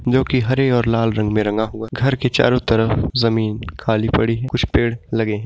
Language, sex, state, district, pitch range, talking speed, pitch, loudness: Hindi, male, Uttar Pradesh, Ghazipur, 110-125 Hz, 220 wpm, 115 Hz, -18 LUFS